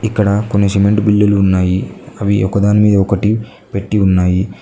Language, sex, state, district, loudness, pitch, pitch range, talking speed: Telugu, male, Telangana, Mahabubabad, -13 LUFS, 100 Hz, 95-105 Hz, 155 wpm